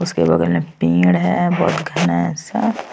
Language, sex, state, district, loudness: Hindi, female, Uttar Pradesh, Jyotiba Phule Nagar, -17 LUFS